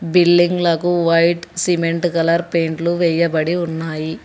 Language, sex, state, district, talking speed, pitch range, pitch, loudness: Telugu, male, Telangana, Hyderabad, 115 wpm, 165-175 Hz, 170 Hz, -17 LUFS